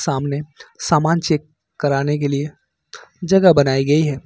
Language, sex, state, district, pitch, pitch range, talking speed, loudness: Hindi, male, Uttar Pradesh, Lucknow, 150 Hz, 140-160 Hz, 140 wpm, -18 LUFS